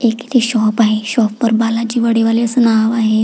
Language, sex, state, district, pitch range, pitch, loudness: Marathi, female, Maharashtra, Pune, 220-235 Hz, 230 Hz, -14 LUFS